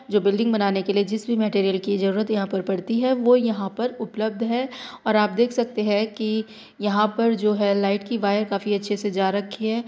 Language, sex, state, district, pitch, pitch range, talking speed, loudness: Hindi, female, Uttar Pradesh, Hamirpur, 215 Hz, 200-230 Hz, 235 wpm, -23 LUFS